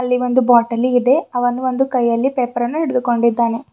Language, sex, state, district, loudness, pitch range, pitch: Kannada, female, Karnataka, Bidar, -16 LUFS, 240-255 Hz, 250 Hz